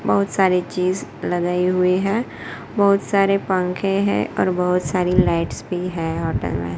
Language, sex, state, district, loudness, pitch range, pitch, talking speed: Hindi, female, Gujarat, Gandhinagar, -20 LUFS, 175-195 Hz, 180 Hz, 160 wpm